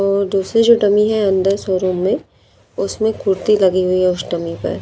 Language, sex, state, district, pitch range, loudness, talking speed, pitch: Hindi, female, Madhya Pradesh, Dhar, 185-210 Hz, -16 LUFS, 200 wpm, 195 Hz